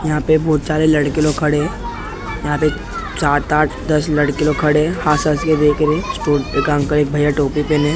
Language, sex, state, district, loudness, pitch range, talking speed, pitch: Hindi, male, Maharashtra, Mumbai Suburban, -17 LUFS, 150-155 Hz, 240 wpm, 150 Hz